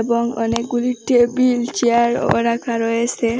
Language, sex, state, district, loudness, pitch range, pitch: Bengali, female, Assam, Hailakandi, -18 LUFS, 235-245 Hz, 235 Hz